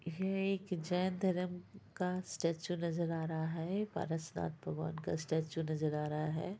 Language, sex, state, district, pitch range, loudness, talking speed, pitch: Hindi, female, Bihar, Purnia, 160-180 Hz, -38 LUFS, 165 wpm, 165 Hz